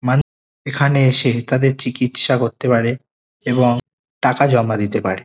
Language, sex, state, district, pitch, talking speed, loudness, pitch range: Bengali, male, West Bengal, Kolkata, 125 Hz, 135 wpm, -16 LUFS, 120-135 Hz